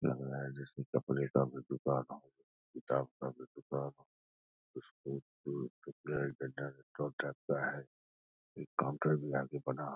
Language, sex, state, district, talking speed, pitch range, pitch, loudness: Hindi, male, Bihar, Madhepura, 130 wpm, 65-70 Hz, 70 Hz, -39 LUFS